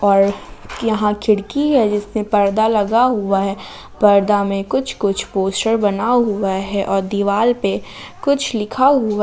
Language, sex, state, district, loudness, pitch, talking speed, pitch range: Hindi, female, Jharkhand, Palamu, -17 LUFS, 205 Hz, 155 wpm, 200-225 Hz